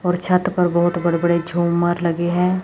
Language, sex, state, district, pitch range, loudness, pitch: Hindi, female, Chandigarh, Chandigarh, 170-180 Hz, -19 LUFS, 175 Hz